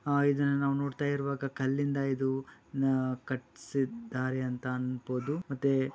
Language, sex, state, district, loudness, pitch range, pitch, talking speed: Kannada, male, Karnataka, Bellary, -32 LUFS, 130-140 Hz, 135 Hz, 120 wpm